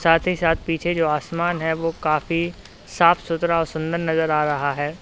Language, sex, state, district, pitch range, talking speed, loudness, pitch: Hindi, male, Uttar Pradesh, Lalitpur, 160-170 Hz, 205 wpm, -21 LUFS, 165 Hz